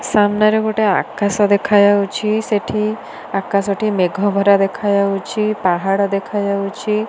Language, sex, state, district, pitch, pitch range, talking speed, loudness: Odia, female, Odisha, Nuapada, 205 Hz, 200-215 Hz, 125 wpm, -16 LUFS